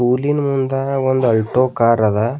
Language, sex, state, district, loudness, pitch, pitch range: Kannada, male, Karnataka, Bidar, -16 LUFS, 130 Hz, 115-135 Hz